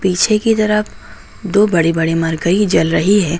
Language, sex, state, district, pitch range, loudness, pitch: Hindi, female, Uttar Pradesh, Lucknow, 165-210 Hz, -14 LUFS, 185 Hz